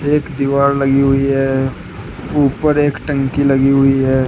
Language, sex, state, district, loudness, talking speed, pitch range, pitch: Hindi, male, Uttar Pradesh, Shamli, -14 LUFS, 155 wpm, 135-145 Hz, 140 Hz